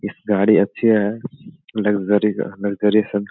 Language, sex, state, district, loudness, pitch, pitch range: Hindi, male, Bihar, Jamui, -18 LUFS, 105 Hz, 100-110 Hz